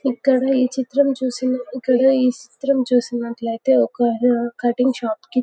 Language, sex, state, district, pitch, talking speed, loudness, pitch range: Telugu, female, Telangana, Karimnagar, 255 Hz, 110 wpm, -19 LUFS, 245-265 Hz